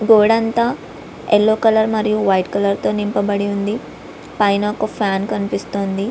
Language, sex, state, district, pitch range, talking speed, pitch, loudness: Telugu, female, Andhra Pradesh, Visakhapatnam, 200-220 Hz, 130 wpm, 210 Hz, -17 LUFS